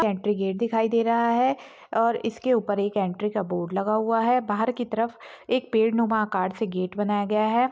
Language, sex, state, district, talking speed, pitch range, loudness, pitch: Hindi, female, Chhattisgarh, Rajnandgaon, 220 wpm, 205-235 Hz, -25 LUFS, 220 Hz